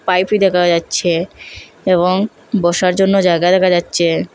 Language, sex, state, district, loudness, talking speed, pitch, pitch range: Bengali, female, Assam, Hailakandi, -14 LUFS, 110 wpm, 180 Hz, 175-190 Hz